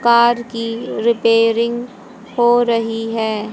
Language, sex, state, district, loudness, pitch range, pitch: Hindi, female, Haryana, Jhajjar, -16 LUFS, 225-235 Hz, 230 Hz